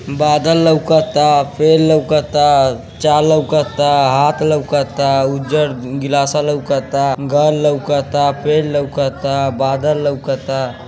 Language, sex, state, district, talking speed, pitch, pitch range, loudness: Hindi, male, Uttar Pradesh, Gorakhpur, 100 wpm, 145 Hz, 140-150 Hz, -14 LUFS